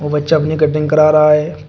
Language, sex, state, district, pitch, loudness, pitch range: Hindi, male, Uttar Pradesh, Shamli, 155 Hz, -12 LUFS, 150-155 Hz